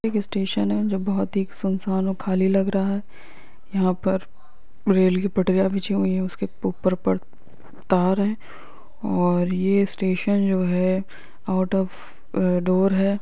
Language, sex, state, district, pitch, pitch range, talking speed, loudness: Hindi, female, Andhra Pradesh, Guntur, 190 Hz, 185-195 Hz, 150 wpm, -23 LUFS